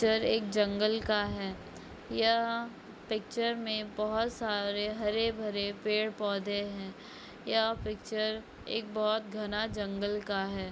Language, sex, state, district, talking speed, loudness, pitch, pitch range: Hindi, female, Jharkhand, Jamtara, 125 wpm, -32 LUFS, 215 Hz, 205-220 Hz